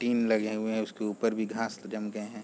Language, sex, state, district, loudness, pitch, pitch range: Hindi, male, Chhattisgarh, Raigarh, -31 LUFS, 110 Hz, 105-115 Hz